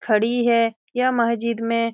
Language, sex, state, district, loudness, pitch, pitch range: Hindi, female, Bihar, Saran, -21 LUFS, 230 Hz, 230-240 Hz